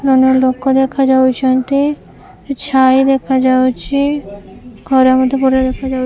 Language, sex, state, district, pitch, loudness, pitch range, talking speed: Odia, female, Odisha, Khordha, 260 Hz, -13 LUFS, 260-270 Hz, 100 wpm